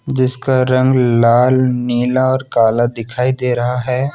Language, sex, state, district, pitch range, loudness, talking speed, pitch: Hindi, male, Jharkhand, Deoghar, 120-130 Hz, -14 LUFS, 145 wpm, 125 Hz